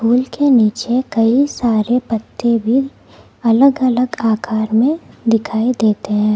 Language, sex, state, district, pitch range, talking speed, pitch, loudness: Hindi, female, Karnataka, Bangalore, 220-255 Hz, 130 wpm, 235 Hz, -15 LUFS